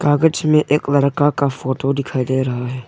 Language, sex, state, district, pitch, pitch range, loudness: Hindi, male, Arunachal Pradesh, Longding, 140 Hz, 130-150 Hz, -17 LUFS